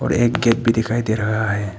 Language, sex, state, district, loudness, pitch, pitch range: Hindi, male, Arunachal Pradesh, Papum Pare, -19 LUFS, 115 Hz, 110-120 Hz